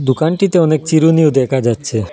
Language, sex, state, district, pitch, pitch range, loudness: Bengali, male, Assam, Hailakandi, 155 Hz, 130-160 Hz, -13 LUFS